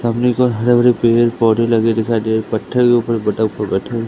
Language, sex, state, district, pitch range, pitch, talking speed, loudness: Hindi, male, Madhya Pradesh, Katni, 110-120 Hz, 115 Hz, 160 wpm, -15 LUFS